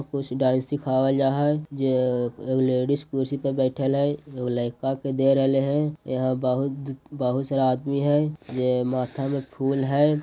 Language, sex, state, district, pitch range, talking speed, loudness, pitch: Magahi, male, Bihar, Jahanabad, 130-140 Hz, 170 wpm, -24 LUFS, 135 Hz